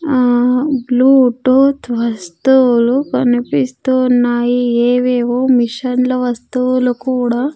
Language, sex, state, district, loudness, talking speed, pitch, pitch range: Telugu, female, Andhra Pradesh, Sri Satya Sai, -14 LUFS, 70 wpm, 250 Hz, 245-260 Hz